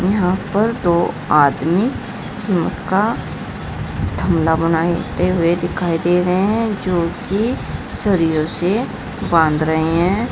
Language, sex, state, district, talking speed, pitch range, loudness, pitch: Hindi, female, Uttar Pradesh, Saharanpur, 115 wpm, 165-195 Hz, -17 LUFS, 175 Hz